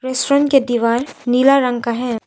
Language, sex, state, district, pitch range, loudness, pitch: Hindi, female, Arunachal Pradesh, Papum Pare, 240-275 Hz, -16 LUFS, 250 Hz